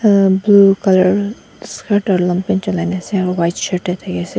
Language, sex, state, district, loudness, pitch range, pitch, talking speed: Nagamese, female, Nagaland, Dimapur, -15 LUFS, 180-200 Hz, 190 Hz, 220 wpm